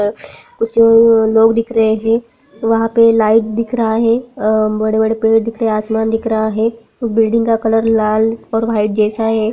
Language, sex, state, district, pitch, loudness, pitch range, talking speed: Hindi, female, Bihar, Gaya, 225 Hz, -14 LUFS, 220-230 Hz, 180 wpm